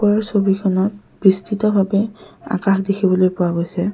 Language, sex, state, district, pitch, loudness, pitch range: Assamese, female, Assam, Kamrup Metropolitan, 195 Hz, -18 LUFS, 190-205 Hz